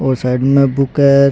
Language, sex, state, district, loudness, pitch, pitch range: Rajasthani, male, Rajasthan, Churu, -13 LUFS, 135 Hz, 130-140 Hz